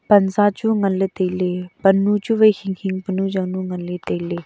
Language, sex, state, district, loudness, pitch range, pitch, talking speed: Wancho, female, Arunachal Pradesh, Longding, -19 LUFS, 185-205 Hz, 190 Hz, 230 wpm